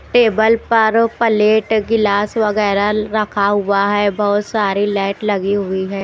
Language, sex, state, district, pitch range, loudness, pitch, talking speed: Hindi, female, Chhattisgarh, Raipur, 200-220 Hz, -15 LUFS, 210 Hz, 140 wpm